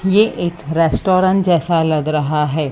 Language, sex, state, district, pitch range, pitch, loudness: Hindi, female, Maharashtra, Mumbai Suburban, 155-185 Hz, 165 Hz, -16 LUFS